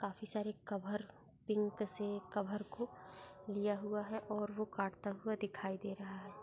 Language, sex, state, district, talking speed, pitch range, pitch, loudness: Hindi, male, Bihar, Darbhanga, 170 wpm, 195-210 Hz, 205 Hz, -41 LUFS